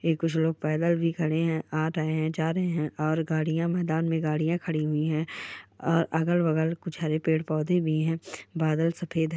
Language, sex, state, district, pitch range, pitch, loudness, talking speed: Hindi, female, Rajasthan, Churu, 155-165 Hz, 160 Hz, -27 LUFS, 200 wpm